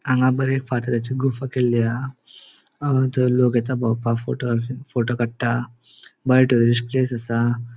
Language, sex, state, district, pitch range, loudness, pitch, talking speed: Konkani, male, Goa, North and South Goa, 120-130 Hz, -21 LUFS, 125 Hz, 140 wpm